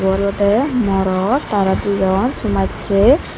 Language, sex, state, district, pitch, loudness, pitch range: Chakma, female, Tripura, Unakoti, 200 Hz, -16 LUFS, 190-210 Hz